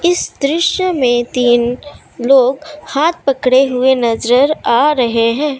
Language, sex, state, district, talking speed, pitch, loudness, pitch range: Hindi, female, Assam, Kamrup Metropolitan, 130 wpm, 270 Hz, -13 LUFS, 245-300 Hz